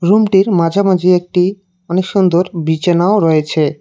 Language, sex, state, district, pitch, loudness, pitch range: Bengali, male, West Bengal, Cooch Behar, 180 Hz, -13 LUFS, 170-190 Hz